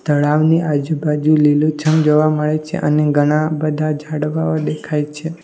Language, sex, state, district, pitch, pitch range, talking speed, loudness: Gujarati, male, Gujarat, Valsad, 150 Hz, 150-155 Hz, 145 wpm, -16 LUFS